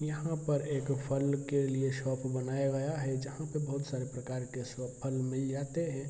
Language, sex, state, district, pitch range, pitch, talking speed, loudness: Hindi, male, Bihar, Araria, 130-140 Hz, 135 Hz, 205 wpm, -35 LUFS